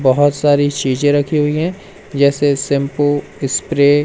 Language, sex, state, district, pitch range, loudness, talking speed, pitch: Hindi, male, Madhya Pradesh, Umaria, 140-150 Hz, -15 LUFS, 150 wpm, 145 Hz